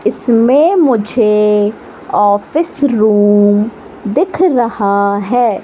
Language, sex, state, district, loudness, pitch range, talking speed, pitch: Hindi, female, Madhya Pradesh, Katni, -12 LUFS, 205-250 Hz, 75 wpm, 220 Hz